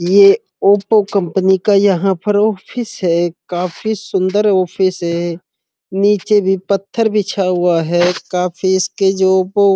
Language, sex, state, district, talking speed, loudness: Hindi, male, Uttar Pradesh, Muzaffarnagar, 140 wpm, -15 LUFS